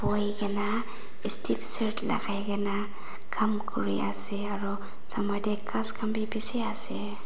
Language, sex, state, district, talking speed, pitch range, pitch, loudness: Nagamese, female, Nagaland, Dimapur, 125 wpm, 200-215 Hz, 205 Hz, -23 LUFS